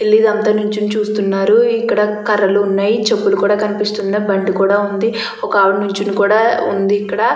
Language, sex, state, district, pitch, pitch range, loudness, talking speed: Telugu, female, Andhra Pradesh, Chittoor, 210 Hz, 200-215 Hz, -15 LUFS, 155 wpm